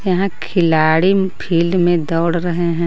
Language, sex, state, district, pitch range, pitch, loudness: Hindi, female, Jharkhand, Garhwa, 165-185 Hz, 170 Hz, -16 LUFS